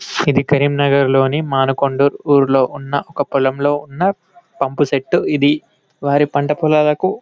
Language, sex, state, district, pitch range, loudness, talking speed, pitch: Telugu, male, Telangana, Karimnagar, 140-150 Hz, -16 LUFS, 115 wpm, 145 Hz